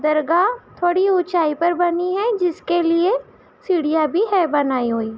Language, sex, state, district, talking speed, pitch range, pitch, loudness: Hindi, female, Uttar Pradesh, Hamirpur, 150 wpm, 310-375 Hz, 345 Hz, -19 LUFS